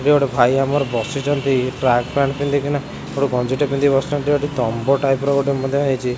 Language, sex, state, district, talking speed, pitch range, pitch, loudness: Odia, male, Odisha, Khordha, 205 wpm, 130-140 Hz, 140 Hz, -18 LUFS